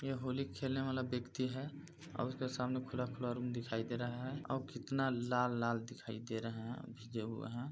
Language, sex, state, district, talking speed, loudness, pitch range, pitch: Hindi, male, Chhattisgarh, Balrampur, 200 wpm, -41 LUFS, 120-135 Hz, 125 Hz